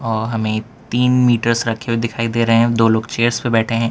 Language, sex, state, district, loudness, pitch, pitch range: Hindi, male, Gujarat, Valsad, -17 LUFS, 115 Hz, 115-120 Hz